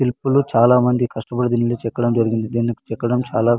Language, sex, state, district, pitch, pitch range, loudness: Telugu, male, Andhra Pradesh, Anantapur, 120 Hz, 115-125 Hz, -18 LUFS